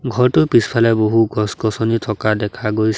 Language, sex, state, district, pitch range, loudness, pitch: Assamese, male, Assam, Sonitpur, 110-115 Hz, -16 LUFS, 110 Hz